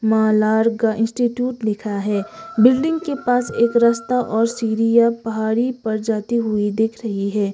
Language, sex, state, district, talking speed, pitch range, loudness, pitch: Hindi, female, Sikkim, Gangtok, 150 wpm, 220-240 Hz, -19 LUFS, 225 Hz